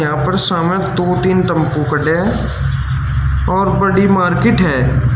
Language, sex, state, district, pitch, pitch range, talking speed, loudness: Hindi, male, Uttar Pradesh, Shamli, 175 Hz, 150-185 Hz, 140 wpm, -14 LUFS